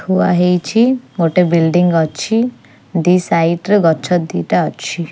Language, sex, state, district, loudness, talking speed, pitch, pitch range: Odia, female, Odisha, Khordha, -14 LUFS, 130 wpm, 175 Hz, 165-185 Hz